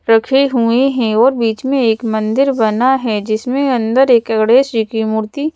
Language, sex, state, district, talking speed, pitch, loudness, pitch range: Hindi, female, Madhya Pradesh, Bhopal, 185 wpm, 235 Hz, -14 LUFS, 220-265 Hz